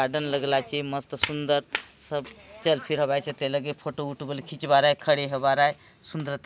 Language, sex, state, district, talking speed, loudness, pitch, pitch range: Chhattisgarhi, male, Chhattisgarh, Bastar, 160 wpm, -26 LUFS, 145 Hz, 140-150 Hz